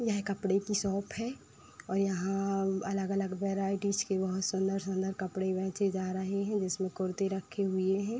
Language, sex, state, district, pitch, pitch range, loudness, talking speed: Hindi, female, Uttar Pradesh, Budaun, 195 Hz, 190-200 Hz, -33 LUFS, 190 wpm